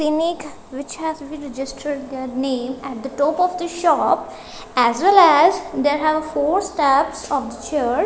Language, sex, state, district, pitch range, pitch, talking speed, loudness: English, female, Punjab, Kapurthala, 270-330 Hz, 295 Hz, 170 wpm, -19 LUFS